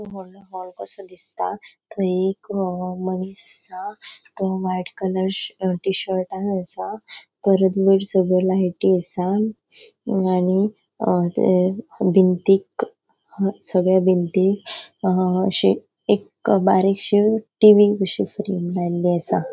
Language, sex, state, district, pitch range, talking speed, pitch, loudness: Konkani, female, Goa, North and South Goa, 185-200 Hz, 110 wpm, 190 Hz, -20 LUFS